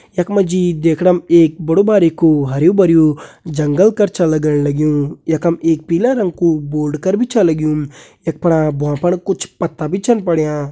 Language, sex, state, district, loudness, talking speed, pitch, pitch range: Kumaoni, male, Uttarakhand, Uttarkashi, -14 LUFS, 185 wpm, 165 Hz, 155-180 Hz